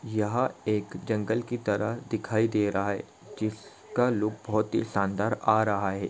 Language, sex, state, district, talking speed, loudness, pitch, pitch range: Hindi, male, Bihar, Saran, 165 wpm, -28 LUFS, 110 Hz, 105-110 Hz